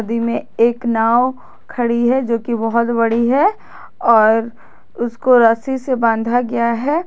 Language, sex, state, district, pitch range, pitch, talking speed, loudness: Hindi, female, Jharkhand, Garhwa, 230-250 Hz, 235 Hz, 155 wpm, -16 LUFS